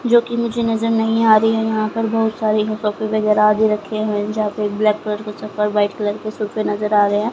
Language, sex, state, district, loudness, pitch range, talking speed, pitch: Hindi, female, Haryana, Jhajjar, -18 LUFS, 210-225 Hz, 245 wpm, 215 Hz